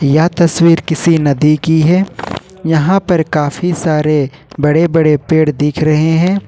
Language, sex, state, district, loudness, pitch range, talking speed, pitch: Hindi, male, Jharkhand, Ranchi, -12 LUFS, 150-170 Hz, 150 wpm, 160 Hz